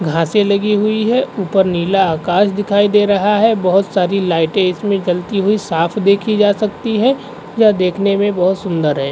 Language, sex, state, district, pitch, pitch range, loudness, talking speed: Hindi, male, Uttar Pradesh, Varanasi, 200 Hz, 180-210 Hz, -14 LUFS, 185 wpm